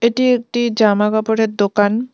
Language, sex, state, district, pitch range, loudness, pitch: Bengali, female, West Bengal, Cooch Behar, 210-240 Hz, -16 LUFS, 220 Hz